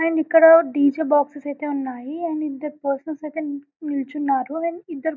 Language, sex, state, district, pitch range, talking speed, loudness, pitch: Telugu, female, Telangana, Karimnagar, 285-320 Hz, 150 wpm, -21 LUFS, 300 Hz